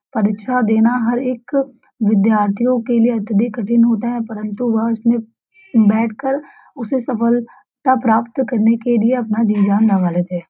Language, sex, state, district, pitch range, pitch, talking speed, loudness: Hindi, female, Uttar Pradesh, Varanasi, 220-250 Hz, 230 Hz, 150 wpm, -16 LUFS